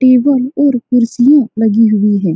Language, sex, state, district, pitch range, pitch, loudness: Hindi, female, Bihar, Saran, 220-265 Hz, 245 Hz, -11 LUFS